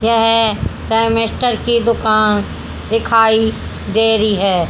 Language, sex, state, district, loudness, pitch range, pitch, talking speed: Hindi, female, Haryana, Jhajjar, -14 LUFS, 215-225 Hz, 225 Hz, 100 wpm